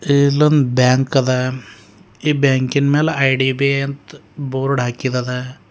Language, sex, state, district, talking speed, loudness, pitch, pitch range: Kannada, male, Karnataka, Bidar, 115 wpm, -17 LUFS, 135 Hz, 130-140 Hz